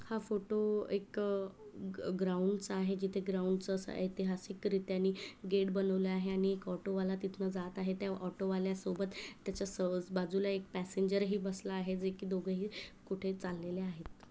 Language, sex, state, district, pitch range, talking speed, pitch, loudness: Marathi, female, Maharashtra, Pune, 190-195 Hz, 165 wpm, 190 Hz, -37 LUFS